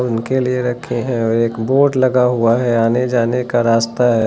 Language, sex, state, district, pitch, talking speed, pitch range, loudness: Hindi, male, Uttar Pradesh, Lucknow, 120 Hz, 210 wpm, 115-125 Hz, -16 LUFS